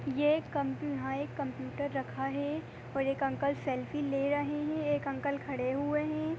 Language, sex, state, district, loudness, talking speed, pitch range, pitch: Hindi, female, Bihar, Begusarai, -34 LUFS, 190 wpm, 265-295 Hz, 280 Hz